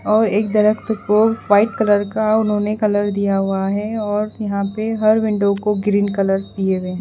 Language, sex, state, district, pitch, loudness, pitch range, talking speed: Hindi, female, Bihar, Katihar, 210 Hz, -18 LUFS, 200-215 Hz, 195 wpm